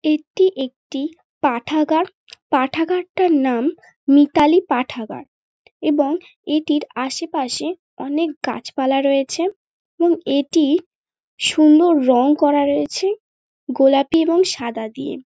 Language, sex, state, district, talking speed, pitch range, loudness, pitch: Bengali, female, West Bengal, North 24 Parganas, 90 wpm, 275-335 Hz, -18 LUFS, 300 Hz